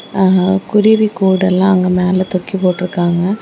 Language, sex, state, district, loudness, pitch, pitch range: Tamil, female, Tamil Nadu, Kanyakumari, -13 LUFS, 185 Hz, 180-195 Hz